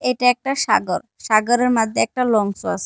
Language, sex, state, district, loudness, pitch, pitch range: Bengali, female, West Bengal, Kolkata, -19 LUFS, 245 Hz, 220-250 Hz